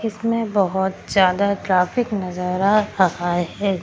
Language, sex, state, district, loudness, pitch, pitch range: Hindi, female, Bihar, Samastipur, -20 LUFS, 195 Hz, 180-210 Hz